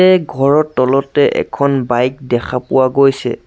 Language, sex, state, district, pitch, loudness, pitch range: Assamese, male, Assam, Sonitpur, 135 Hz, -14 LUFS, 125-140 Hz